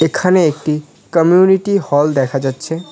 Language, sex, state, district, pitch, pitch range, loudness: Bengali, male, West Bengal, Cooch Behar, 160 Hz, 145-180 Hz, -14 LUFS